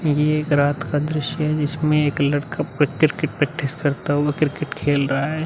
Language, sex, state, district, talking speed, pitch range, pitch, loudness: Hindi, male, Uttar Pradesh, Muzaffarnagar, 185 wpm, 145-155 Hz, 150 Hz, -21 LUFS